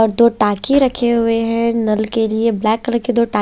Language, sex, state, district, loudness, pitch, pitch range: Hindi, female, Chandigarh, Chandigarh, -16 LUFS, 230 Hz, 220-235 Hz